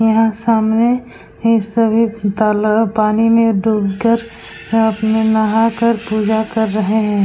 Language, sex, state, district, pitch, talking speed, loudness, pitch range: Hindi, female, Uttar Pradesh, Etah, 220 Hz, 130 wpm, -15 LUFS, 215-230 Hz